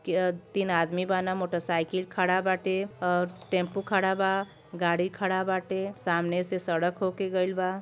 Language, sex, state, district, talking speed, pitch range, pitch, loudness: Bhojpuri, male, Uttar Pradesh, Deoria, 155 wpm, 180-190 Hz, 185 Hz, -28 LUFS